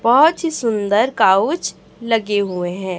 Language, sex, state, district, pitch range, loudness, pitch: Hindi, female, Chhattisgarh, Raipur, 190-245 Hz, -17 LUFS, 215 Hz